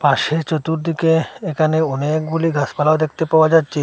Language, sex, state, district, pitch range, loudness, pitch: Bengali, male, Assam, Hailakandi, 155-160 Hz, -17 LUFS, 160 Hz